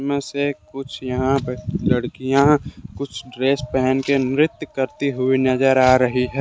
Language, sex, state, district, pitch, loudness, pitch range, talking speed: Hindi, male, Jharkhand, Deoghar, 130 Hz, -19 LUFS, 130-140 Hz, 170 wpm